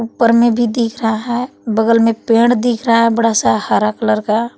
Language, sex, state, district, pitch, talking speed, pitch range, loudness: Hindi, female, Jharkhand, Palamu, 230 Hz, 235 wpm, 225-235 Hz, -14 LUFS